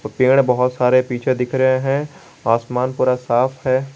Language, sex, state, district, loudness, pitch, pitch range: Hindi, male, Jharkhand, Garhwa, -18 LUFS, 130 Hz, 125-135 Hz